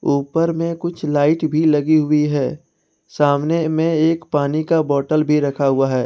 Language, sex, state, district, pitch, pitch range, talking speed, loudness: Hindi, male, Jharkhand, Ranchi, 155 Hz, 145-160 Hz, 180 wpm, -18 LUFS